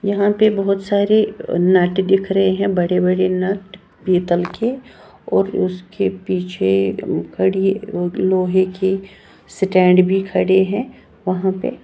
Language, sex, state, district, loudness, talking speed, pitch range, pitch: Hindi, female, Haryana, Jhajjar, -17 LUFS, 120 wpm, 180-195 Hz, 190 Hz